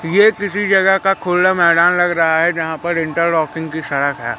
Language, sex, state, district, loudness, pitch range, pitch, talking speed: Hindi, male, Madhya Pradesh, Katni, -15 LUFS, 160-190 Hz, 170 Hz, 205 wpm